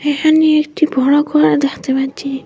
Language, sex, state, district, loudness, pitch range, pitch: Bengali, female, Assam, Hailakandi, -14 LUFS, 265-305 Hz, 290 Hz